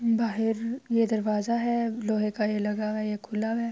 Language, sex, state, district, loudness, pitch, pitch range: Urdu, female, Andhra Pradesh, Anantapur, -28 LUFS, 225 Hz, 215-230 Hz